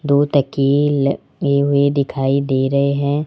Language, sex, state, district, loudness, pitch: Hindi, male, Rajasthan, Jaipur, -17 LUFS, 140 Hz